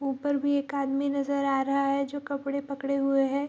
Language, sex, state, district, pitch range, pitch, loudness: Hindi, female, Bihar, Kishanganj, 275-280 Hz, 275 Hz, -28 LUFS